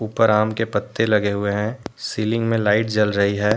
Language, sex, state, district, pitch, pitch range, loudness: Hindi, male, Jharkhand, Deoghar, 105 Hz, 105-115 Hz, -20 LUFS